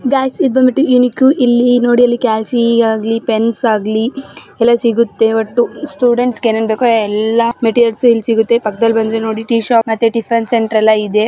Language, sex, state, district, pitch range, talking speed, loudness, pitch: Kannada, female, Karnataka, Gulbarga, 225-245 Hz, 170 wpm, -13 LUFS, 230 Hz